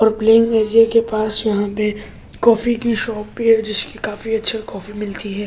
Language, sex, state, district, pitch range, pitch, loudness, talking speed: Hindi, male, Delhi, New Delhi, 210-225 Hz, 220 Hz, -17 LUFS, 210 wpm